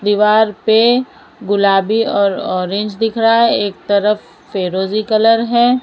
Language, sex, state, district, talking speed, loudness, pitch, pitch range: Hindi, female, Maharashtra, Mumbai Suburban, 135 wpm, -14 LUFS, 210 Hz, 200-225 Hz